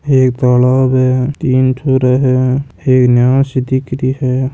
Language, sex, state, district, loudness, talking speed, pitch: Marwari, male, Rajasthan, Nagaur, -12 LUFS, 160 wpm, 130 Hz